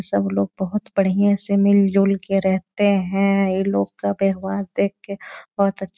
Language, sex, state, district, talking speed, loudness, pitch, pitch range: Hindi, female, Bihar, Jahanabad, 180 wpm, -20 LUFS, 195 Hz, 190-200 Hz